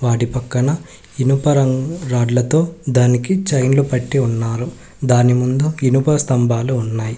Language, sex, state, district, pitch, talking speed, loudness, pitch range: Telugu, male, Telangana, Hyderabad, 130 Hz, 115 wpm, -17 LUFS, 120-140 Hz